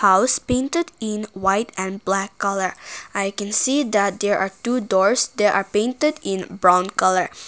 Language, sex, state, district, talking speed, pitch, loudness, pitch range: English, female, Nagaland, Kohima, 170 wpm, 200 Hz, -20 LUFS, 195-240 Hz